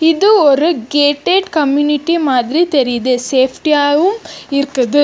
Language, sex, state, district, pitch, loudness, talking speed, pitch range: Tamil, female, Karnataka, Bangalore, 290 Hz, -13 LUFS, 95 wpm, 270-325 Hz